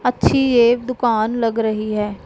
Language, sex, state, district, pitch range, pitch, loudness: Hindi, female, Punjab, Pathankot, 215-240 Hz, 230 Hz, -17 LUFS